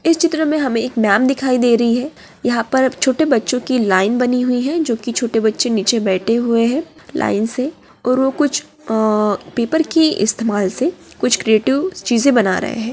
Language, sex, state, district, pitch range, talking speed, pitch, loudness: Hindi, female, Bihar, Araria, 225-270 Hz, 200 wpm, 245 Hz, -16 LUFS